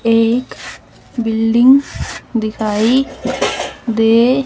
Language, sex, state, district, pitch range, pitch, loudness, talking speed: Hindi, female, Haryana, Jhajjar, 225-250 Hz, 230 Hz, -15 LUFS, 55 wpm